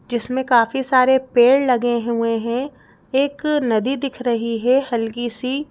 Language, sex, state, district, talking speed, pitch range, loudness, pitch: Hindi, female, Madhya Pradesh, Bhopal, 145 wpm, 235-265 Hz, -18 LUFS, 250 Hz